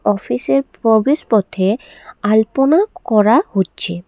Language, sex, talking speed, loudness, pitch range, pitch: Bengali, female, 75 wpm, -16 LUFS, 190-270 Hz, 215 Hz